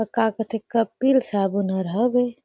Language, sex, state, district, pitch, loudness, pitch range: Surgujia, female, Chhattisgarh, Sarguja, 225 Hz, -22 LUFS, 200-240 Hz